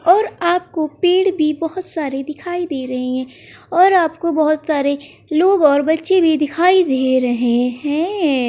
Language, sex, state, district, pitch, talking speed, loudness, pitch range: Hindi, male, Bihar, Gaya, 315 Hz, 155 wpm, -17 LUFS, 280-355 Hz